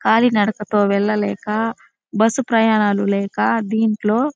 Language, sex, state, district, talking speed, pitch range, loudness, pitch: Telugu, female, Andhra Pradesh, Chittoor, 95 wpm, 205-225 Hz, -18 LUFS, 215 Hz